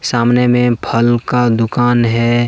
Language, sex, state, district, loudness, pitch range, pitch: Hindi, male, Jharkhand, Deoghar, -13 LUFS, 115-125 Hz, 120 Hz